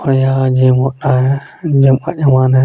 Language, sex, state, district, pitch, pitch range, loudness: Hindi, male, Jharkhand, Deoghar, 135 Hz, 130-135 Hz, -13 LUFS